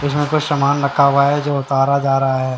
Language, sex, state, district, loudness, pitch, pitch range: Hindi, male, Haryana, Jhajjar, -16 LUFS, 140 Hz, 135-145 Hz